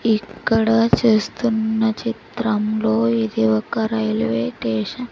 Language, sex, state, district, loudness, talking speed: Telugu, female, Andhra Pradesh, Sri Satya Sai, -19 LUFS, 95 wpm